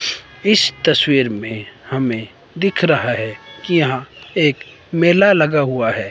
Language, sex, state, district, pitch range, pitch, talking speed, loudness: Hindi, male, Himachal Pradesh, Shimla, 115-170 Hz, 140 Hz, 135 wpm, -16 LUFS